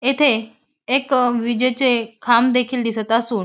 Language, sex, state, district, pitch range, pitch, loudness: Marathi, female, Maharashtra, Aurangabad, 230-260 Hz, 245 Hz, -17 LUFS